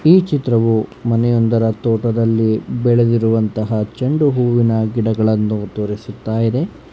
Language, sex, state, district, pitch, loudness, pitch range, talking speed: Kannada, male, Karnataka, Bangalore, 115 Hz, -16 LUFS, 110-120 Hz, 85 wpm